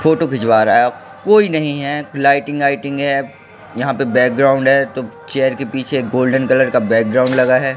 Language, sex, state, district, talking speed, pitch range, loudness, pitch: Hindi, male, Madhya Pradesh, Katni, 185 wpm, 130-140 Hz, -15 LUFS, 135 Hz